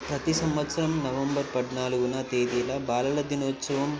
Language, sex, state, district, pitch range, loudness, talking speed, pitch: Telugu, male, Telangana, Nalgonda, 125-145 Hz, -28 LUFS, 105 wpm, 140 Hz